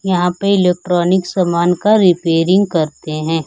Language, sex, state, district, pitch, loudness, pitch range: Hindi, female, Bihar, Kaimur, 180 Hz, -14 LUFS, 165-185 Hz